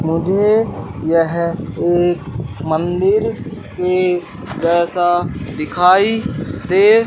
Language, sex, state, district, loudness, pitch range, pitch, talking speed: Hindi, male, Madhya Pradesh, Katni, -16 LUFS, 160-185 Hz, 175 Hz, 70 wpm